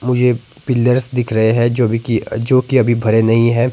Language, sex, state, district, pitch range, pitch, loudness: Hindi, male, Himachal Pradesh, Shimla, 115-125 Hz, 120 Hz, -15 LUFS